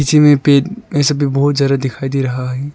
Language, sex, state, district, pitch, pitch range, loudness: Hindi, male, Arunachal Pradesh, Lower Dibang Valley, 140 Hz, 135-145 Hz, -14 LUFS